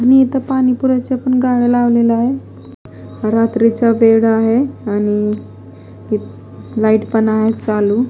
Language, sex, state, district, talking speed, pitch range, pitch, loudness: Marathi, female, Maharashtra, Mumbai Suburban, 105 wpm, 215-250 Hz, 230 Hz, -14 LUFS